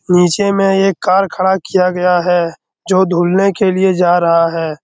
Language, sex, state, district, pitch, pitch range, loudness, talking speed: Hindi, male, Bihar, Araria, 180 Hz, 175-190 Hz, -13 LUFS, 185 wpm